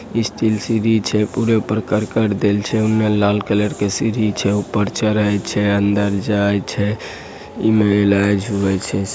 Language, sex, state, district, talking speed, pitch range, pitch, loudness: Angika, male, Bihar, Begusarai, 155 wpm, 100-110 Hz, 105 Hz, -17 LUFS